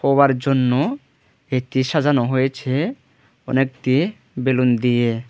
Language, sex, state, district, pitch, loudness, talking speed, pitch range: Bengali, male, Tripura, Dhalai, 130 Hz, -19 LUFS, 90 wpm, 125-140 Hz